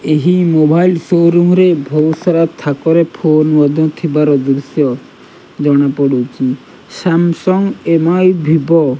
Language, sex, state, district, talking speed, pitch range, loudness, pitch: Odia, male, Odisha, Nuapada, 105 wpm, 145-170 Hz, -12 LUFS, 160 Hz